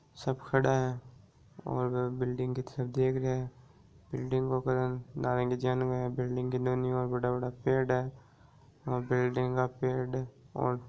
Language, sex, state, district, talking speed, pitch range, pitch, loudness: Marwari, male, Rajasthan, Nagaur, 150 wpm, 125-130 Hz, 125 Hz, -32 LUFS